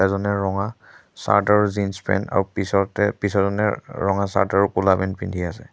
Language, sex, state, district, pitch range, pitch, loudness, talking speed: Assamese, male, Assam, Sonitpur, 95-100 Hz, 100 Hz, -21 LUFS, 170 wpm